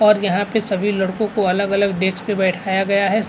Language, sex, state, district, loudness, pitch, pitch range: Hindi, male, Chhattisgarh, Rajnandgaon, -18 LUFS, 200 Hz, 190-205 Hz